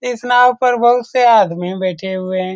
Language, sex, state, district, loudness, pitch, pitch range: Hindi, male, Bihar, Saran, -14 LUFS, 235 Hz, 185-245 Hz